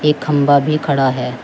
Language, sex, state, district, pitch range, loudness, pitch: Hindi, female, Uttar Pradesh, Shamli, 135-150 Hz, -15 LUFS, 145 Hz